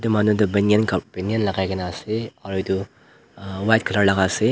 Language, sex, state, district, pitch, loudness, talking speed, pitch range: Nagamese, male, Nagaland, Dimapur, 100 Hz, -21 LUFS, 185 wpm, 95-110 Hz